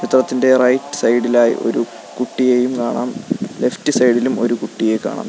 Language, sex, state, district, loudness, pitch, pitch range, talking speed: Malayalam, male, Kerala, Kollam, -17 LUFS, 125 Hz, 120-130 Hz, 125 wpm